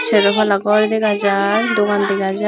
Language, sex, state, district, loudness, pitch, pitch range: Chakma, female, Tripura, Unakoti, -15 LUFS, 205 Hz, 200-215 Hz